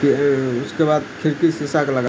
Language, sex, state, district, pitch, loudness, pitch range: Hindi, male, Bihar, Supaul, 145 Hz, -19 LUFS, 135-155 Hz